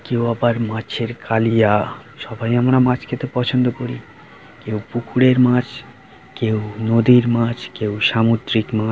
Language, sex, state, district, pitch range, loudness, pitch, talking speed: Bengali, male, West Bengal, Jhargram, 110-125 Hz, -18 LUFS, 115 Hz, 135 wpm